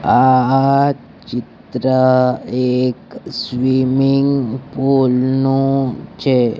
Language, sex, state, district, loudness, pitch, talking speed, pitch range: Gujarati, male, Gujarat, Gandhinagar, -16 LUFS, 130 Hz, 65 wpm, 125-135 Hz